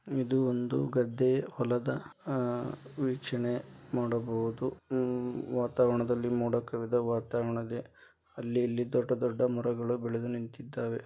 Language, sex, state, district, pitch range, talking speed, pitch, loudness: Kannada, male, Karnataka, Dharwad, 120-125 Hz, 110 wpm, 120 Hz, -32 LUFS